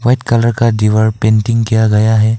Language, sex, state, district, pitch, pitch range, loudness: Hindi, male, Arunachal Pradesh, Papum Pare, 110 Hz, 110-115 Hz, -12 LUFS